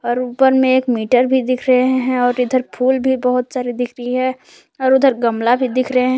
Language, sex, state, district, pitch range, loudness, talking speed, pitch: Hindi, female, Jharkhand, Palamu, 245-260 Hz, -16 LUFS, 245 wpm, 255 Hz